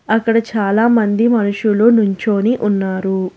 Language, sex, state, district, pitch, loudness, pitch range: Telugu, female, Telangana, Hyderabad, 215 Hz, -15 LUFS, 200-230 Hz